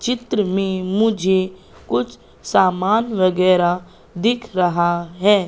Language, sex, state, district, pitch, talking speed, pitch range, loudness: Hindi, female, Madhya Pradesh, Katni, 185 Hz, 100 wpm, 180-210 Hz, -19 LUFS